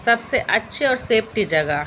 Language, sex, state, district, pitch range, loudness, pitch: Garhwali, female, Uttarakhand, Tehri Garhwal, 160-235 Hz, -19 LUFS, 225 Hz